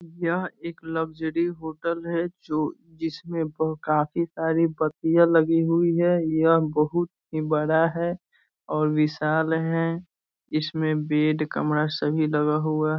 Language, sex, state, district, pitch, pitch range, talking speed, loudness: Hindi, male, Bihar, East Champaran, 160 Hz, 155-170 Hz, 135 wpm, -24 LUFS